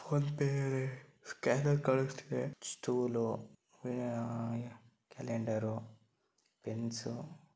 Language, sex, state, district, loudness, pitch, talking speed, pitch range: Kannada, male, Karnataka, Dharwad, -37 LUFS, 120 Hz, 65 wpm, 115-135 Hz